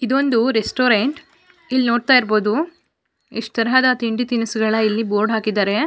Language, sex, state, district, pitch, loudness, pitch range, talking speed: Kannada, female, Karnataka, Mysore, 235 Hz, -18 LUFS, 220-255 Hz, 120 wpm